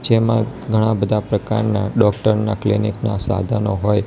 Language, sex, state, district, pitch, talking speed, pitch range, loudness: Gujarati, male, Gujarat, Gandhinagar, 105 Hz, 160 wpm, 105-110 Hz, -18 LUFS